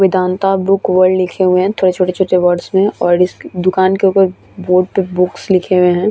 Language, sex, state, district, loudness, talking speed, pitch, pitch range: Hindi, female, Bihar, Vaishali, -13 LUFS, 205 wpm, 185 Hz, 180-195 Hz